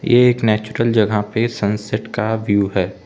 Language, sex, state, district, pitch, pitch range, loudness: Hindi, male, Arunachal Pradesh, Lower Dibang Valley, 110 Hz, 105-115 Hz, -18 LUFS